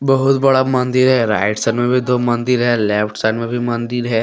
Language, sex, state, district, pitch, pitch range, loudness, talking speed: Hindi, male, Jharkhand, Deoghar, 120 Hz, 115-125 Hz, -16 LUFS, 240 wpm